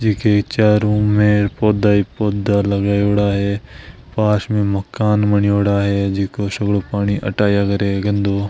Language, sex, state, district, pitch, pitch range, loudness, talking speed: Marwari, male, Rajasthan, Nagaur, 100 Hz, 100-105 Hz, -17 LUFS, 150 wpm